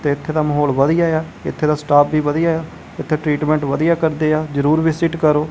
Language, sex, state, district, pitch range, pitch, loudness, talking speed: Punjabi, male, Punjab, Kapurthala, 145-160 Hz, 155 Hz, -17 LUFS, 220 wpm